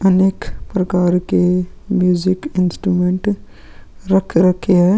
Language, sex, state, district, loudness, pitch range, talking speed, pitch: Hindi, male, Goa, North and South Goa, -16 LUFS, 180-190 Hz, 95 wpm, 185 Hz